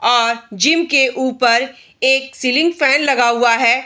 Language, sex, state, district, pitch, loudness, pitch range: Hindi, female, Bihar, Araria, 260 Hz, -14 LUFS, 240-275 Hz